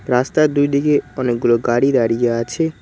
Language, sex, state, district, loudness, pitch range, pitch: Bengali, male, West Bengal, Cooch Behar, -17 LUFS, 120-145 Hz, 130 Hz